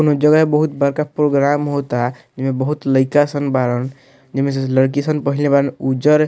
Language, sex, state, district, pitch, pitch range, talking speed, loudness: Bhojpuri, male, Bihar, Muzaffarpur, 140 Hz, 135-150 Hz, 190 wpm, -17 LUFS